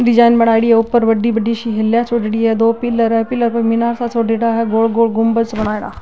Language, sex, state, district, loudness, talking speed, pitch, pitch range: Marwari, female, Rajasthan, Nagaur, -14 LUFS, 300 wpm, 230 Hz, 225-235 Hz